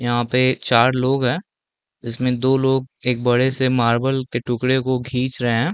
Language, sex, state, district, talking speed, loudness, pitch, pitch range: Hindi, male, Chhattisgarh, Balrampur, 190 wpm, -19 LUFS, 125 Hz, 120-130 Hz